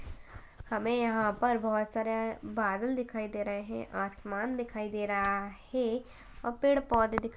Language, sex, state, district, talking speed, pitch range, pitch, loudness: Hindi, female, Chhattisgarh, Bastar, 155 wpm, 205-235 Hz, 225 Hz, -32 LUFS